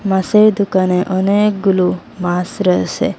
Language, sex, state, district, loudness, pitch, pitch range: Bengali, female, Assam, Hailakandi, -15 LUFS, 190 Hz, 180-200 Hz